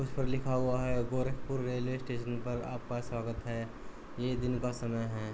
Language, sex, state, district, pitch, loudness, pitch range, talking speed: Hindi, male, Uttar Pradesh, Gorakhpur, 125 Hz, -35 LUFS, 120-130 Hz, 190 wpm